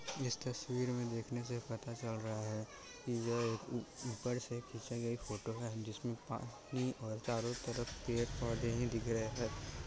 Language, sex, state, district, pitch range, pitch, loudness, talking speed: Hindi, male, Bihar, Muzaffarpur, 115-120 Hz, 120 Hz, -41 LUFS, 175 wpm